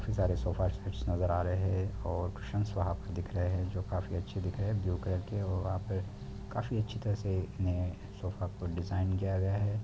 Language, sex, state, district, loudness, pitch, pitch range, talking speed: Hindi, male, Bihar, Darbhanga, -35 LUFS, 95 Hz, 90-100 Hz, 230 wpm